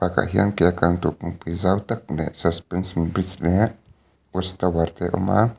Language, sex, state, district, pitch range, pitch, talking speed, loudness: Mizo, male, Mizoram, Aizawl, 85-100 Hz, 90 Hz, 205 wpm, -23 LUFS